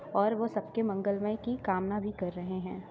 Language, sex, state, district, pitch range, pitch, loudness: Hindi, female, Uttar Pradesh, Varanasi, 185-210 Hz, 200 Hz, -33 LUFS